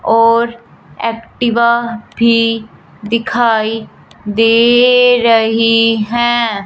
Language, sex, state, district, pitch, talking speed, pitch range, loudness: Hindi, female, Punjab, Fazilka, 230 Hz, 65 wpm, 225-235 Hz, -12 LUFS